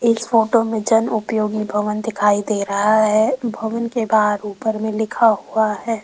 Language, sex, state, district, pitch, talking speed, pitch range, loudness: Hindi, female, Rajasthan, Jaipur, 220 Hz, 180 wpm, 210-225 Hz, -18 LUFS